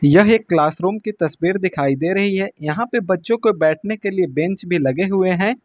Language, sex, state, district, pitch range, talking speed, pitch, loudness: Hindi, male, Uttar Pradesh, Lucknow, 165-210 Hz, 225 wpm, 185 Hz, -18 LUFS